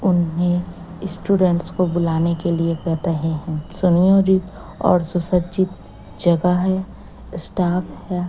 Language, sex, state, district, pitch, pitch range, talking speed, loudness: Hindi, female, Chhattisgarh, Raipur, 175 Hz, 170-185 Hz, 115 wpm, -20 LUFS